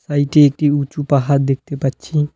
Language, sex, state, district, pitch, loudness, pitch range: Bengali, male, West Bengal, Alipurduar, 145 Hz, -16 LUFS, 140-150 Hz